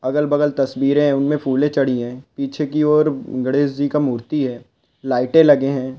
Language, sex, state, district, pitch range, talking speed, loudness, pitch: Hindi, male, Rajasthan, Churu, 130-150 Hz, 180 wpm, -18 LUFS, 140 Hz